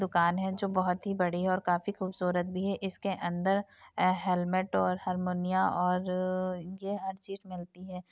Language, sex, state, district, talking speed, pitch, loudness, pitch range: Hindi, female, Uttar Pradesh, Etah, 155 wpm, 185 Hz, -31 LUFS, 180-190 Hz